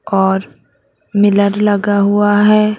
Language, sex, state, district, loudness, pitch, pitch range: Hindi, female, Bihar, Purnia, -13 LUFS, 205 Hz, 200-210 Hz